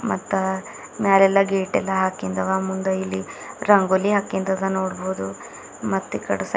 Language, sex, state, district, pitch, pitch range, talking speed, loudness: Kannada, male, Karnataka, Bidar, 190 Hz, 185-195 Hz, 135 wpm, -22 LUFS